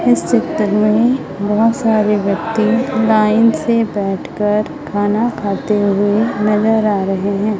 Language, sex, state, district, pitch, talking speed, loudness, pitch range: Hindi, female, Chhattisgarh, Raipur, 215 Hz, 135 wpm, -15 LUFS, 205-225 Hz